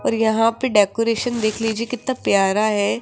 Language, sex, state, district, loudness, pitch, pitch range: Hindi, female, Rajasthan, Jaipur, -19 LUFS, 225 Hz, 210-230 Hz